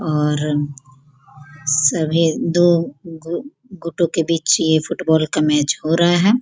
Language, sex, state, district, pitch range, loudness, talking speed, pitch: Hindi, female, Bihar, Gopalganj, 150-170 Hz, -17 LUFS, 130 wpm, 160 Hz